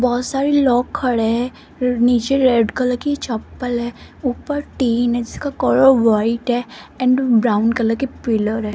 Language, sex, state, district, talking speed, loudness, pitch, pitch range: Hindi, female, Rajasthan, Jaipur, 165 wpm, -18 LUFS, 245 Hz, 235-260 Hz